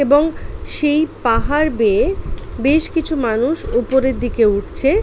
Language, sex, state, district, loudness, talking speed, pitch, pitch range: Bengali, female, West Bengal, Paschim Medinipur, -17 LUFS, 120 wpm, 290 Hz, 245-315 Hz